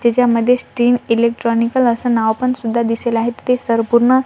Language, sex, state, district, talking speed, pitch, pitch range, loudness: Marathi, female, Maharashtra, Washim, 170 wpm, 235 Hz, 230-250 Hz, -16 LUFS